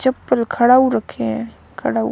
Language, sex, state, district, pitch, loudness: Hindi, female, Maharashtra, Gondia, 240 Hz, -17 LUFS